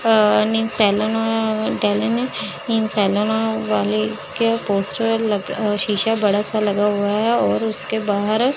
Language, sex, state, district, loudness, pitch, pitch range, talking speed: Hindi, female, Chandigarh, Chandigarh, -19 LUFS, 215 Hz, 205-225 Hz, 145 wpm